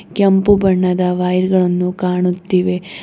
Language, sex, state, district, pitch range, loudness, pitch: Kannada, female, Karnataka, Bidar, 180-190 Hz, -15 LUFS, 180 Hz